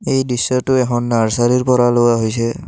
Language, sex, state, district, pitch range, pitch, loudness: Assamese, male, Assam, Kamrup Metropolitan, 115-125 Hz, 120 Hz, -15 LUFS